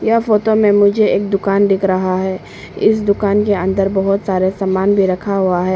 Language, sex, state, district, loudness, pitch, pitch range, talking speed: Hindi, female, Arunachal Pradesh, Papum Pare, -15 LUFS, 195 Hz, 190-205 Hz, 210 wpm